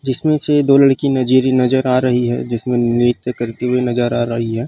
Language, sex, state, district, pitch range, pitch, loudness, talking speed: Chhattisgarhi, male, Chhattisgarh, Rajnandgaon, 120-130 Hz, 125 Hz, -15 LUFS, 220 wpm